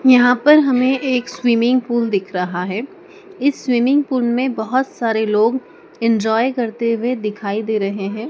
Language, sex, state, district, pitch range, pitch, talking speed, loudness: Hindi, female, Madhya Pradesh, Dhar, 220-260 Hz, 240 Hz, 165 wpm, -17 LUFS